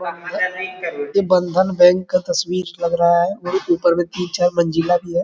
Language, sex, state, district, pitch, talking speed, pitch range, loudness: Hindi, male, Bihar, Araria, 175 Hz, 115 wpm, 170-185 Hz, -18 LUFS